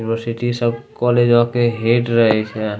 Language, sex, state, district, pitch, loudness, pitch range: Angika, male, Bihar, Bhagalpur, 115 Hz, -17 LUFS, 115-120 Hz